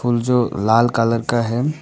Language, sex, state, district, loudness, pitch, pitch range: Hindi, male, Arunachal Pradesh, Papum Pare, -18 LUFS, 120 Hz, 115-120 Hz